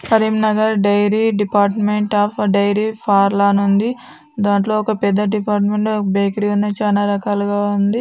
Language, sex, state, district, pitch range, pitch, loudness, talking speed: Telugu, female, Andhra Pradesh, Anantapur, 205-215 Hz, 205 Hz, -16 LUFS, 125 wpm